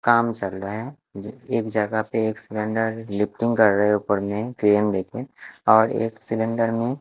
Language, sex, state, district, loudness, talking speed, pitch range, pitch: Hindi, male, Bihar, West Champaran, -22 LUFS, 180 wpm, 105-115 Hz, 110 Hz